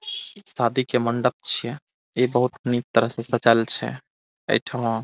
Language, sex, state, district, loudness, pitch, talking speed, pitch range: Maithili, male, Bihar, Saharsa, -23 LUFS, 120 Hz, 145 wpm, 115-125 Hz